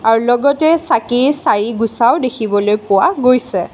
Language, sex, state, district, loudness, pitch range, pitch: Assamese, female, Assam, Kamrup Metropolitan, -14 LUFS, 215-260 Hz, 235 Hz